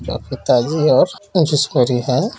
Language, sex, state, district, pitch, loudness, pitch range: Kumaoni, male, Uttarakhand, Uttarkashi, 150 Hz, -16 LUFS, 125-165 Hz